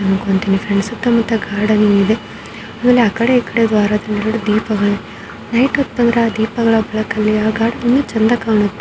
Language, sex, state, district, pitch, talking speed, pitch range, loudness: Kannada, female, Karnataka, Gulbarga, 220 Hz, 170 wpm, 210-230 Hz, -15 LUFS